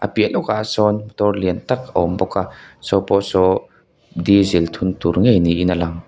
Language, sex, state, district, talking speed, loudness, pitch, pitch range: Mizo, male, Mizoram, Aizawl, 195 wpm, -18 LUFS, 95 Hz, 85-105 Hz